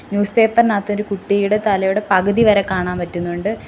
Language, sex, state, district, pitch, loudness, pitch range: Malayalam, female, Kerala, Kollam, 200 Hz, -17 LUFS, 190-210 Hz